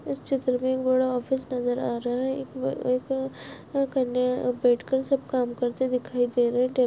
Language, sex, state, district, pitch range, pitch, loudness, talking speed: Hindi, female, Chhattisgarh, Balrampur, 245-260 Hz, 250 Hz, -26 LUFS, 225 wpm